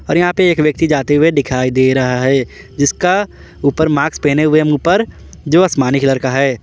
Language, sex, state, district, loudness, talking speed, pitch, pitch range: Hindi, male, Jharkhand, Palamu, -13 LUFS, 200 wpm, 145 Hz, 135-165 Hz